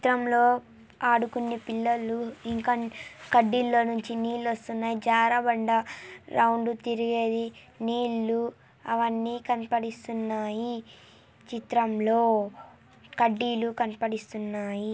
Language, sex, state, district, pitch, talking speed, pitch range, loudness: Telugu, female, Andhra Pradesh, Anantapur, 230 Hz, 70 wpm, 225-235 Hz, -27 LUFS